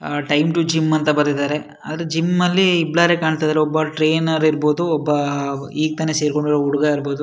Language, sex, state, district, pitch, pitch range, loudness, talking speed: Kannada, male, Karnataka, Shimoga, 155 Hz, 150-160 Hz, -18 LUFS, 160 wpm